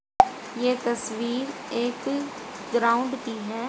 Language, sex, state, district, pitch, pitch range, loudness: Hindi, female, Haryana, Rohtak, 240 Hz, 235-260 Hz, -26 LUFS